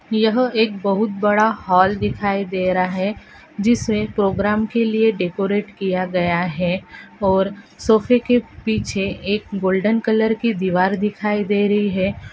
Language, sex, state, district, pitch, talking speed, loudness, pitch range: Hindi, female, Andhra Pradesh, Anantapur, 205 Hz, 140 wpm, -19 LUFS, 190-220 Hz